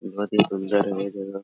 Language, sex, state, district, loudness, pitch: Hindi, male, Bihar, Araria, -24 LUFS, 100 Hz